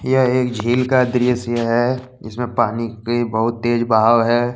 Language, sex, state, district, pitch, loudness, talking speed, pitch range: Hindi, male, Jharkhand, Deoghar, 120 Hz, -18 LUFS, 170 wpm, 115-125 Hz